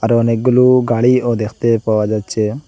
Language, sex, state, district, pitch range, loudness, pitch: Bengali, male, Assam, Hailakandi, 110-125 Hz, -14 LUFS, 115 Hz